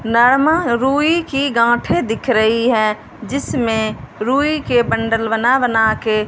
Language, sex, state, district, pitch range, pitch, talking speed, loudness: Hindi, female, Punjab, Fazilka, 225-270 Hz, 235 Hz, 135 wpm, -16 LUFS